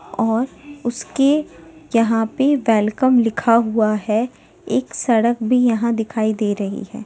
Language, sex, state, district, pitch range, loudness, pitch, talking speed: Hindi, female, Uttar Pradesh, Jyotiba Phule Nagar, 220-250 Hz, -18 LUFS, 230 Hz, 135 wpm